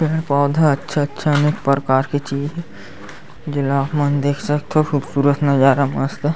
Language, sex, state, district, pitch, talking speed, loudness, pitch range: Chhattisgarhi, male, Chhattisgarh, Sarguja, 140 Hz, 150 wpm, -18 LUFS, 140-150 Hz